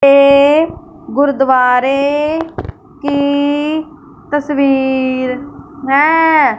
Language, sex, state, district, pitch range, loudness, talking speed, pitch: Hindi, female, Punjab, Fazilka, 275-300 Hz, -13 LUFS, 45 wpm, 285 Hz